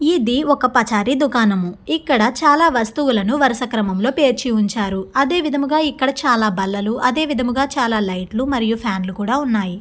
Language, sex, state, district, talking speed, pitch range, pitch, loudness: Telugu, female, Andhra Pradesh, Guntur, 160 wpm, 215-275 Hz, 245 Hz, -17 LUFS